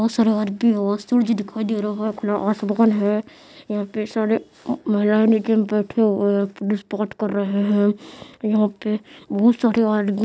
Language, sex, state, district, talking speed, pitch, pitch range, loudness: Hindi, female, Bihar, Madhepura, 200 wpm, 215 Hz, 205-225 Hz, -21 LUFS